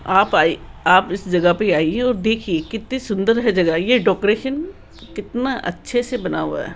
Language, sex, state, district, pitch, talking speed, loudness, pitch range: Hindi, male, Rajasthan, Jaipur, 220 Hz, 185 wpm, -18 LUFS, 180-250 Hz